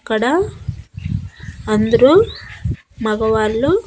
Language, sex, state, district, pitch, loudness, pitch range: Telugu, female, Andhra Pradesh, Annamaya, 225 Hz, -17 LUFS, 215-345 Hz